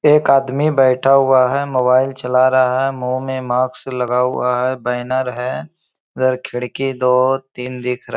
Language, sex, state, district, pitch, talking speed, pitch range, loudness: Hindi, male, Bihar, Bhagalpur, 130 Hz, 175 wpm, 125-135 Hz, -16 LUFS